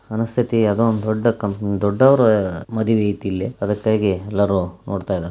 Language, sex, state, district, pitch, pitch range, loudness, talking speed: Kannada, male, Karnataka, Belgaum, 105 Hz, 100-115 Hz, -19 LUFS, 160 wpm